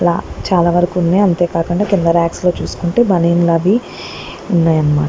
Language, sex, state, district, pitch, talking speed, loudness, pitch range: Telugu, female, Andhra Pradesh, Guntur, 175 Hz, 175 wpm, -14 LUFS, 170-185 Hz